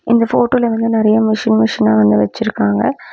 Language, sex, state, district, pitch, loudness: Tamil, female, Tamil Nadu, Namakkal, 220 Hz, -14 LUFS